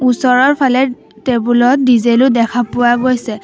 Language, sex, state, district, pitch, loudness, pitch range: Assamese, female, Assam, Sonitpur, 245 Hz, -12 LUFS, 240-255 Hz